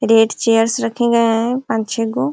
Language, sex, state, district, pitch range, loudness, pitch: Hindi, female, Uttar Pradesh, Ghazipur, 225-235 Hz, -16 LUFS, 225 Hz